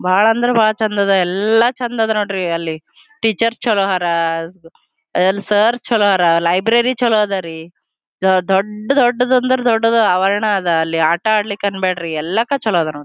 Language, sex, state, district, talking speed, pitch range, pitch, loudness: Kannada, female, Karnataka, Gulbarga, 150 wpm, 180-225 Hz, 200 Hz, -16 LUFS